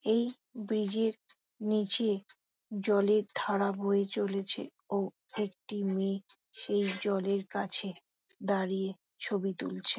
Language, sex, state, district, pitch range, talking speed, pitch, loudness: Bengali, female, West Bengal, Jhargram, 195-215 Hz, 110 wpm, 200 Hz, -32 LUFS